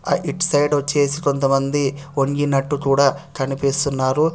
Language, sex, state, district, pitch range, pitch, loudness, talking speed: Telugu, male, Telangana, Hyderabad, 135-145 Hz, 140 Hz, -19 LUFS, 95 wpm